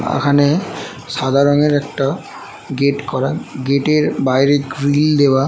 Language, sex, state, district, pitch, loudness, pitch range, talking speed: Bengali, male, West Bengal, North 24 Parganas, 145 Hz, -16 LUFS, 135-150 Hz, 120 wpm